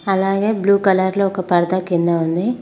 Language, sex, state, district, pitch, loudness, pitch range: Telugu, female, Telangana, Mahabubabad, 190 Hz, -17 LUFS, 175-200 Hz